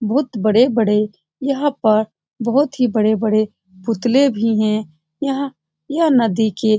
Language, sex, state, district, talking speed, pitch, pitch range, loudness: Hindi, female, Bihar, Saran, 130 wpm, 220 Hz, 215-265 Hz, -18 LUFS